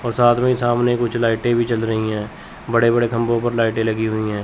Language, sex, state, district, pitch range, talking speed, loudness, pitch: Hindi, male, Chandigarh, Chandigarh, 110-120 Hz, 245 wpm, -18 LUFS, 115 Hz